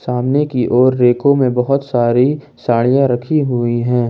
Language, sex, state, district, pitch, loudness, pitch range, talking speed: Hindi, male, Jharkhand, Ranchi, 125 Hz, -14 LUFS, 120-140 Hz, 160 wpm